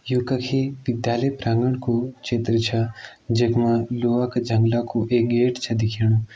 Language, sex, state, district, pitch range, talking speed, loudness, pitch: Garhwali, male, Uttarakhand, Tehri Garhwal, 115-125 Hz, 150 wpm, -22 LUFS, 120 Hz